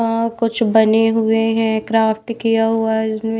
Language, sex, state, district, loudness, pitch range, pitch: Hindi, female, Haryana, Rohtak, -16 LUFS, 220-225 Hz, 225 Hz